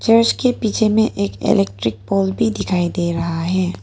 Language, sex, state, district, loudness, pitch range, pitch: Hindi, female, Arunachal Pradesh, Papum Pare, -18 LUFS, 165-220 Hz, 185 Hz